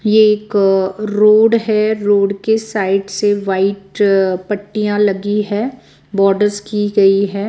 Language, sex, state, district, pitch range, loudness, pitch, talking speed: Hindi, female, Bihar, West Champaran, 195-215 Hz, -15 LUFS, 205 Hz, 130 wpm